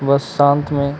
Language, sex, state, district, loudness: Chhattisgarhi, male, Chhattisgarh, Kabirdham, -16 LUFS